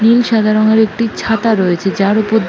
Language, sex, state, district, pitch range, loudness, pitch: Bengali, female, West Bengal, North 24 Parganas, 205-225 Hz, -13 LUFS, 220 Hz